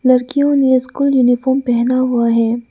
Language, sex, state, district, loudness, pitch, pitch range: Hindi, female, Arunachal Pradesh, Lower Dibang Valley, -14 LUFS, 255 Hz, 240-265 Hz